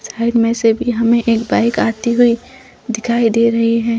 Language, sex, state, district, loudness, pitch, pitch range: Hindi, female, Chhattisgarh, Bastar, -15 LUFS, 230 Hz, 230-235 Hz